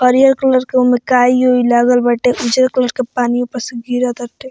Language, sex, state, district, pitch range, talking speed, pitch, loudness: Bhojpuri, female, Bihar, Muzaffarpur, 245-255 Hz, 200 wpm, 250 Hz, -14 LUFS